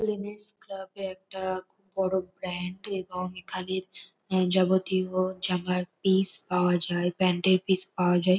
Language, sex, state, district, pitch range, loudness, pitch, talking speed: Bengali, female, West Bengal, North 24 Parganas, 180-190 Hz, -28 LUFS, 185 Hz, 135 wpm